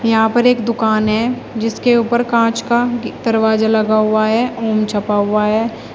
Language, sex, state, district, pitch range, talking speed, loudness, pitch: Hindi, female, Uttar Pradesh, Shamli, 215-235 Hz, 170 wpm, -15 LUFS, 225 Hz